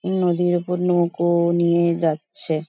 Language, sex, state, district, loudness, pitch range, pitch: Bengali, female, West Bengal, Paschim Medinipur, -20 LUFS, 170-175 Hz, 170 Hz